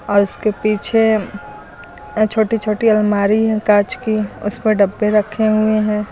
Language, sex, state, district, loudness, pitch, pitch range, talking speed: Hindi, female, Uttar Pradesh, Lucknow, -16 LUFS, 215 Hz, 205-220 Hz, 145 wpm